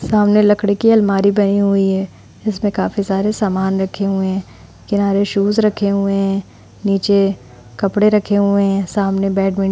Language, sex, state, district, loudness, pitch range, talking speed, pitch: Hindi, female, Uttar Pradesh, Hamirpur, -16 LUFS, 195-205 Hz, 165 wpm, 200 Hz